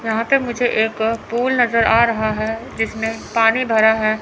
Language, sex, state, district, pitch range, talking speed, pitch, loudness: Hindi, male, Chandigarh, Chandigarh, 220-235 Hz, 185 wpm, 225 Hz, -17 LUFS